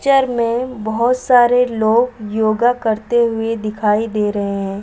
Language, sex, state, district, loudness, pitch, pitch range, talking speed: Hindi, female, Uttar Pradesh, Varanasi, -16 LUFS, 230 Hz, 215-245 Hz, 150 wpm